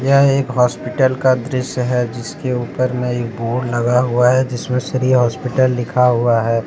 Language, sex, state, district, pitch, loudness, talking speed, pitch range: Hindi, male, Jharkhand, Deoghar, 125 Hz, -17 LUFS, 190 wpm, 120-130 Hz